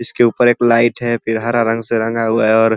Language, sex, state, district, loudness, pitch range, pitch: Hindi, male, Uttar Pradesh, Ghazipur, -15 LUFS, 115-120 Hz, 115 Hz